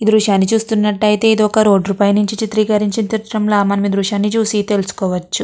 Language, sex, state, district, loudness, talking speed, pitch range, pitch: Telugu, female, Andhra Pradesh, Krishna, -15 LUFS, 185 wpm, 200-215 Hz, 210 Hz